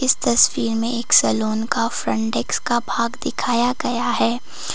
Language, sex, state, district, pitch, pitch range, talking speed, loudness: Hindi, female, Sikkim, Gangtok, 235 Hz, 220-245 Hz, 150 wpm, -19 LUFS